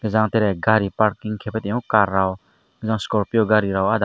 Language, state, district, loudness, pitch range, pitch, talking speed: Kokborok, Tripura, Dhalai, -20 LUFS, 100-110 Hz, 110 Hz, 190 wpm